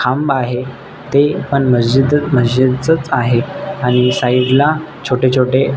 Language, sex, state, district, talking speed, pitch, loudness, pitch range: Marathi, male, Maharashtra, Nagpur, 125 wpm, 130 Hz, -14 LUFS, 125-145 Hz